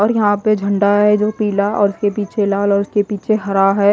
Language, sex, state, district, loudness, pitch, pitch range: Hindi, female, Haryana, Jhajjar, -16 LUFS, 205 Hz, 200-210 Hz